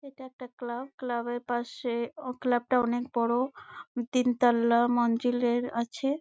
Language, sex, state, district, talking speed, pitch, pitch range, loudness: Bengali, female, West Bengal, Malda, 145 wpm, 245 Hz, 240-255 Hz, -29 LUFS